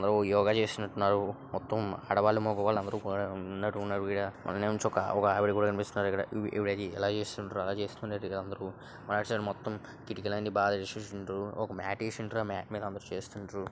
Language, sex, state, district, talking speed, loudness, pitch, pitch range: Telugu, male, Andhra Pradesh, Srikakulam, 170 wpm, -32 LUFS, 100 Hz, 100-105 Hz